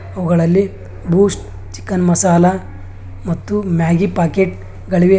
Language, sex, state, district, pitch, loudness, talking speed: Kannada, male, Karnataka, Bangalore, 170 Hz, -15 LUFS, 90 wpm